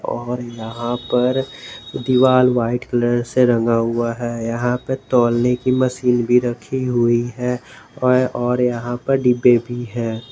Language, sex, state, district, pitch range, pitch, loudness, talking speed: Hindi, male, Jharkhand, Garhwa, 120-125 Hz, 120 Hz, -18 LUFS, 145 wpm